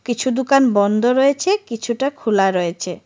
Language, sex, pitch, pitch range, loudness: Bengali, female, 240 Hz, 200-275 Hz, -17 LUFS